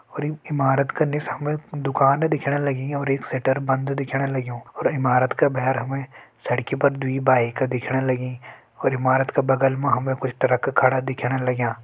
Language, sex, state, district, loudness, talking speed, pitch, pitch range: Hindi, male, Uttarakhand, Tehri Garhwal, -22 LUFS, 180 wpm, 135 Hz, 130-140 Hz